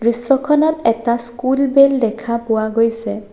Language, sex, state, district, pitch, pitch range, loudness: Assamese, female, Assam, Sonitpur, 235 Hz, 225-270 Hz, -16 LUFS